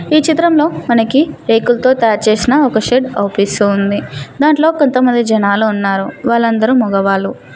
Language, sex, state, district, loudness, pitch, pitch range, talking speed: Telugu, female, Telangana, Mahabubabad, -12 LUFS, 230 Hz, 205-265 Hz, 110 wpm